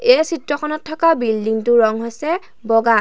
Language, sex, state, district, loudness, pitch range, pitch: Assamese, female, Assam, Sonitpur, -18 LUFS, 225-325 Hz, 280 Hz